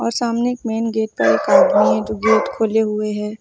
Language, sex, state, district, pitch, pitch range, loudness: Hindi, female, Uttar Pradesh, Lucknow, 220 Hz, 215-230 Hz, -17 LUFS